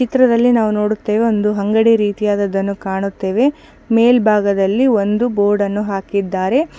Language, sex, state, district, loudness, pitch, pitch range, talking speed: Kannada, female, Karnataka, Shimoga, -15 LUFS, 210 Hz, 200-235 Hz, 115 wpm